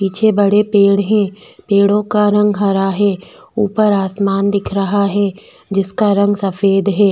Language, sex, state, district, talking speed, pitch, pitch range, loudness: Hindi, female, Chhattisgarh, Bastar, 150 wpm, 200 Hz, 195-205 Hz, -14 LUFS